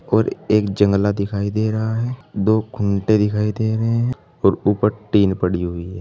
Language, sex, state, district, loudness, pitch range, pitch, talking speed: Hindi, male, Uttar Pradesh, Saharanpur, -19 LUFS, 100-110 Hz, 105 Hz, 190 wpm